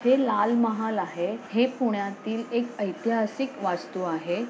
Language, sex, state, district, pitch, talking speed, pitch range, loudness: Marathi, female, Maharashtra, Pune, 220 Hz, 135 wpm, 200-235 Hz, -27 LUFS